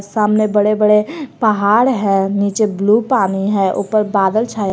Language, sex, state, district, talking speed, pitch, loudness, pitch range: Hindi, female, Jharkhand, Garhwa, 150 wpm, 210 Hz, -15 LUFS, 200-215 Hz